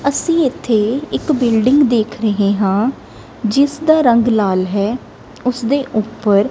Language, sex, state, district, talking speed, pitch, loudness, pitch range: Punjabi, female, Punjab, Kapurthala, 130 wpm, 240 Hz, -15 LUFS, 215-275 Hz